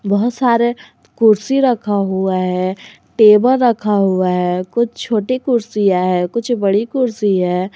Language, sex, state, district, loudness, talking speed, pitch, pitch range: Hindi, female, Jharkhand, Garhwa, -15 LUFS, 140 wpm, 210 Hz, 190-235 Hz